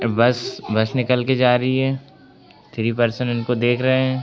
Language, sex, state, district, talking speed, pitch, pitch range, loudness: Hindi, male, Uttar Pradesh, Gorakhpur, 185 wpm, 125 Hz, 120-130 Hz, -19 LUFS